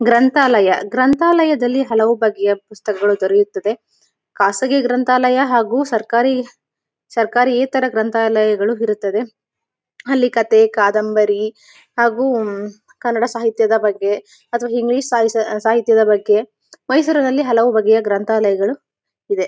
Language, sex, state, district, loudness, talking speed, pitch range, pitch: Kannada, female, Karnataka, Mysore, -16 LUFS, 95 wpm, 210-250 Hz, 225 Hz